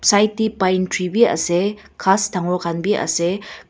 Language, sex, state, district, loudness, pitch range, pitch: Nagamese, female, Nagaland, Dimapur, -19 LUFS, 180-210 Hz, 190 Hz